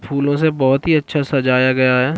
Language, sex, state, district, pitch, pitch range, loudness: Hindi, male, Chhattisgarh, Balrampur, 140 Hz, 130-155 Hz, -16 LUFS